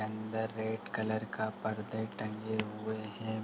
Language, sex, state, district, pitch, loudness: Hindi, male, Uttar Pradesh, Hamirpur, 110 Hz, -37 LUFS